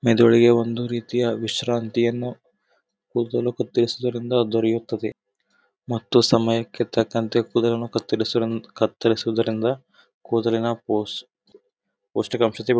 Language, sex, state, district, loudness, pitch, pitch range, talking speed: Kannada, male, Karnataka, Gulbarga, -22 LUFS, 115 Hz, 115-120 Hz, 80 wpm